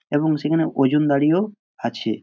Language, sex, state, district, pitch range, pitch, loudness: Bengali, male, West Bengal, Purulia, 135-160 Hz, 150 Hz, -20 LUFS